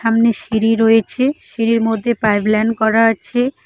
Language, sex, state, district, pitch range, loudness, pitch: Bengali, female, West Bengal, Cooch Behar, 220-230 Hz, -15 LUFS, 225 Hz